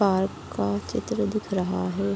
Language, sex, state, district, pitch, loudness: Hindi, female, Uttar Pradesh, Ghazipur, 100 Hz, -27 LUFS